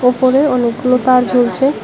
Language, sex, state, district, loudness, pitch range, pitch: Bengali, female, Tripura, West Tripura, -13 LUFS, 245-260 Hz, 250 Hz